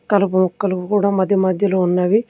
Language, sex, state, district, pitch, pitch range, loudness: Telugu, male, Telangana, Komaram Bheem, 195 Hz, 185-200 Hz, -17 LUFS